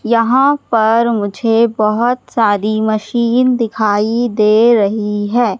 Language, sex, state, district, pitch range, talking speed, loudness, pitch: Hindi, female, Madhya Pradesh, Katni, 215-240 Hz, 105 wpm, -13 LUFS, 225 Hz